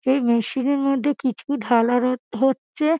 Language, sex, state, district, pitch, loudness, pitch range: Bengali, female, West Bengal, Dakshin Dinajpur, 265 Hz, -21 LUFS, 245-280 Hz